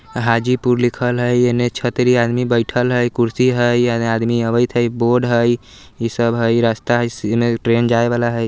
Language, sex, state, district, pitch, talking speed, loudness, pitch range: Bajjika, male, Bihar, Vaishali, 120 Hz, 185 wpm, -16 LUFS, 115-120 Hz